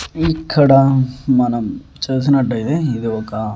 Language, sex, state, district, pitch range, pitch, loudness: Telugu, male, Andhra Pradesh, Annamaya, 115-140 Hz, 130 Hz, -16 LUFS